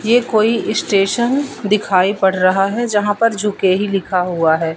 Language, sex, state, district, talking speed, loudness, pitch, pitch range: Hindi, female, Madhya Pradesh, Katni, 175 wpm, -16 LUFS, 205 Hz, 185-220 Hz